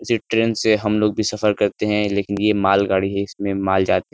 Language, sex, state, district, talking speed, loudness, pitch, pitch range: Hindi, male, Uttar Pradesh, Ghazipur, 245 wpm, -19 LUFS, 105 Hz, 100-105 Hz